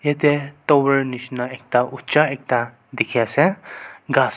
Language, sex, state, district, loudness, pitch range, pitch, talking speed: Nagamese, male, Nagaland, Kohima, -20 LUFS, 125-145 Hz, 135 Hz, 110 wpm